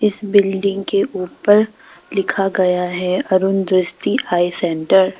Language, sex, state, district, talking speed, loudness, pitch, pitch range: Hindi, female, Arunachal Pradesh, Papum Pare, 140 wpm, -17 LUFS, 195 Hz, 180-200 Hz